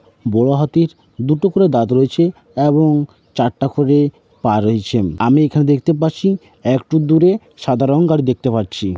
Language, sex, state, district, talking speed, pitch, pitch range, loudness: Bengali, male, West Bengal, Jhargram, 155 wpm, 140 Hz, 120-155 Hz, -15 LUFS